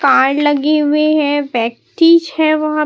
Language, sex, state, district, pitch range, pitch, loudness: Hindi, male, Bihar, Katihar, 285-310 Hz, 300 Hz, -13 LUFS